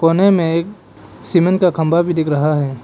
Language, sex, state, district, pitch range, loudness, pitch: Hindi, male, Arunachal Pradesh, Papum Pare, 145-175 Hz, -15 LUFS, 165 Hz